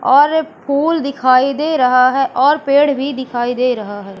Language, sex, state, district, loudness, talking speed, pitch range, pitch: Hindi, female, Madhya Pradesh, Katni, -14 LUFS, 200 wpm, 255-290 Hz, 270 Hz